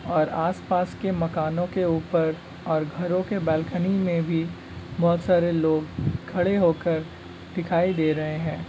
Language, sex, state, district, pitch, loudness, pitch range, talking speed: Hindi, male, Bihar, Muzaffarpur, 170 Hz, -25 LUFS, 160-180 Hz, 145 wpm